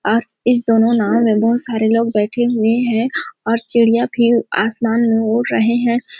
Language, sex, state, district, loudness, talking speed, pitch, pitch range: Hindi, female, Chhattisgarh, Sarguja, -16 LUFS, 185 wpm, 230 Hz, 225-235 Hz